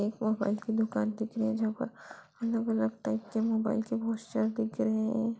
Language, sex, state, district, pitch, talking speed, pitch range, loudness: Hindi, female, Bihar, Saran, 225 Hz, 200 wpm, 220-230 Hz, -32 LUFS